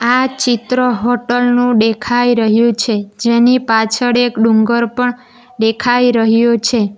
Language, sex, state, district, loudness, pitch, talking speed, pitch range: Gujarati, female, Gujarat, Valsad, -13 LUFS, 235 Hz, 130 wpm, 225-245 Hz